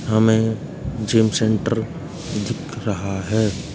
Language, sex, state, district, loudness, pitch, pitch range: Hindi, male, Uttar Pradesh, Jalaun, -21 LUFS, 110 Hz, 110-120 Hz